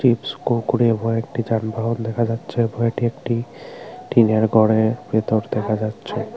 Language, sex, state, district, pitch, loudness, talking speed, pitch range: Bengali, female, Tripura, Unakoti, 115 Hz, -20 LUFS, 125 wpm, 110-120 Hz